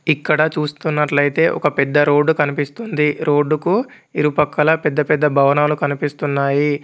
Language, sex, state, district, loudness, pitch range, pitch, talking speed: Telugu, male, Telangana, Komaram Bheem, -17 LUFS, 145-155 Hz, 150 Hz, 115 wpm